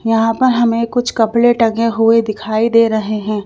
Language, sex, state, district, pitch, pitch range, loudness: Hindi, female, Madhya Pradesh, Bhopal, 230 Hz, 220-230 Hz, -14 LUFS